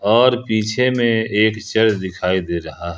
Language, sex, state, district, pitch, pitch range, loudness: Hindi, male, Jharkhand, Ranchi, 110 Hz, 90-115 Hz, -18 LUFS